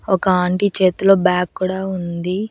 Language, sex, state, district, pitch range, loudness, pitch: Telugu, female, Andhra Pradesh, Annamaya, 180-195 Hz, -17 LUFS, 185 Hz